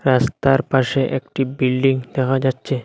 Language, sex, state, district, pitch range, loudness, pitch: Bengali, male, Assam, Hailakandi, 130-135 Hz, -19 LUFS, 130 Hz